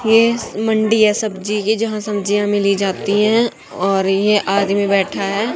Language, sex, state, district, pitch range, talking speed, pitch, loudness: Hindi, female, Haryana, Jhajjar, 200-220 Hz, 175 wpm, 205 Hz, -16 LUFS